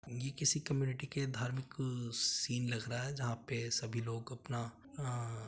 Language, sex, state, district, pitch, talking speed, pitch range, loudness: Hindi, male, Uttar Pradesh, Etah, 125 Hz, 185 wpm, 115-135 Hz, -38 LUFS